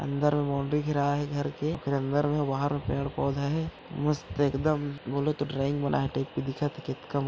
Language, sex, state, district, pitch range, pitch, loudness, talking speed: Chhattisgarhi, male, Chhattisgarh, Korba, 140-145 Hz, 145 Hz, -29 LUFS, 190 wpm